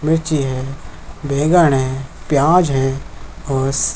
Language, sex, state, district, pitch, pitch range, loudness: Hindi, male, Jharkhand, Jamtara, 140 Hz, 135-155 Hz, -16 LUFS